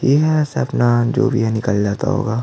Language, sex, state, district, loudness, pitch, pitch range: Hindi, male, Chhattisgarh, Jashpur, -17 LUFS, 120 Hz, 115-135 Hz